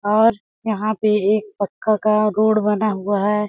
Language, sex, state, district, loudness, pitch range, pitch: Hindi, female, Chhattisgarh, Balrampur, -19 LUFS, 205-215 Hz, 215 Hz